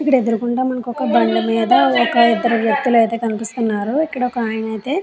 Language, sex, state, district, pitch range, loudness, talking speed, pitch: Telugu, female, Andhra Pradesh, Chittoor, 225-255 Hz, -17 LUFS, 165 wpm, 235 Hz